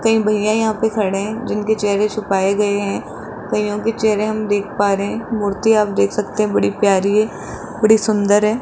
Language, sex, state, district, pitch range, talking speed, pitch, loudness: Hindi, male, Rajasthan, Jaipur, 200-220 Hz, 200 wpm, 210 Hz, -17 LUFS